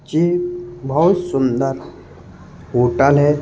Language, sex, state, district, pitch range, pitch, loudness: Hindi, male, Uttar Pradesh, Jalaun, 135-175 Hz, 145 Hz, -17 LUFS